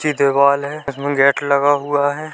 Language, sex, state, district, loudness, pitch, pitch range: Hindi, male, Uttar Pradesh, Jyotiba Phule Nagar, -16 LUFS, 140 Hz, 140-145 Hz